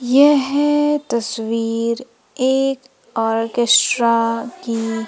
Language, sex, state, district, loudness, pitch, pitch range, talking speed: Hindi, female, Madhya Pradesh, Umaria, -17 LUFS, 235 Hz, 230-270 Hz, 60 wpm